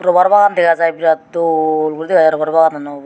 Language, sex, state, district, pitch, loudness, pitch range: Chakma, female, Tripura, Unakoti, 160 Hz, -13 LUFS, 155-170 Hz